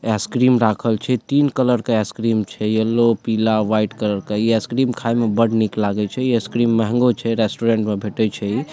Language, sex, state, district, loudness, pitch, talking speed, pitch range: Maithili, male, Bihar, Supaul, -19 LUFS, 115 Hz, 205 wpm, 110-120 Hz